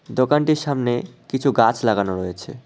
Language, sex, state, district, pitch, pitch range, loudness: Bengali, male, West Bengal, Cooch Behar, 125 Hz, 110-140 Hz, -20 LUFS